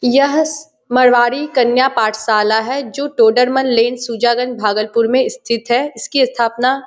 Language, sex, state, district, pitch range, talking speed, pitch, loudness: Hindi, female, Bihar, Bhagalpur, 230-265 Hz, 130 wpm, 245 Hz, -15 LUFS